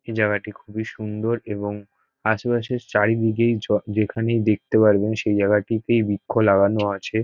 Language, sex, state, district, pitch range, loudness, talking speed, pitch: Bengali, male, West Bengal, North 24 Parganas, 105-115 Hz, -21 LUFS, 140 wpm, 110 Hz